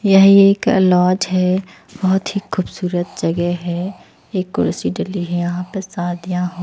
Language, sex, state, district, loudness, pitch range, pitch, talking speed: Hindi, female, Himachal Pradesh, Shimla, -17 LUFS, 175-195 Hz, 185 Hz, 155 wpm